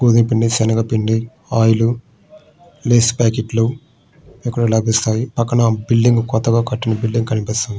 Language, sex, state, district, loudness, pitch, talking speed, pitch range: Telugu, male, Andhra Pradesh, Srikakulam, -16 LUFS, 115 Hz, 110 wpm, 110-120 Hz